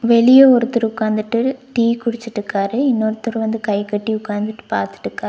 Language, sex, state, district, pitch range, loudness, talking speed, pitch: Tamil, female, Tamil Nadu, Nilgiris, 210-235 Hz, -17 LUFS, 115 wpm, 225 Hz